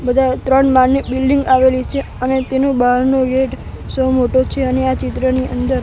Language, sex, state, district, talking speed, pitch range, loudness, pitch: Gujarati, male, Gujarat, Gandhinagar, 175 wpm, 255-265 Hz, -15 LUFS, 260 Hz